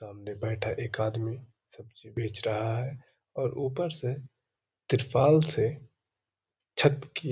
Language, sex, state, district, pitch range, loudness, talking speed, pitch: Hindi, male, Uttar Pradesh, Hamirpur, 110-135 Hz, -29 LUFS, 130 wpm, 120 Hz